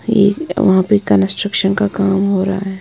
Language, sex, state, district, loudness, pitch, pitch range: Hindi, female, Punjab, Kapurthala, -14 LUFS, 195 Hz, 190-200 Hz